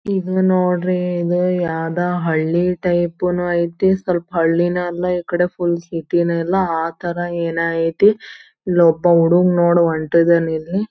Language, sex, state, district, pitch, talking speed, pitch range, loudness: Kannada, female, Karnataka, Belgaum, 175 Hz, 125 wpm, 170-180 Hz, -17 LUFS